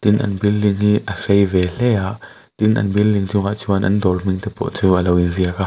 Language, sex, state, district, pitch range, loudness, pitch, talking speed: Mizo, male, Mizoram, Aizawl, 95-105 Hz, -17 LUFS, 100 Hz, 255 wpm